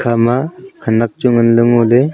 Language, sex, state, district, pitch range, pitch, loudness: Wancho, male, Arunachal Pradesh, Longding, 115-135 Hz, 120 Hz, -13 LUFS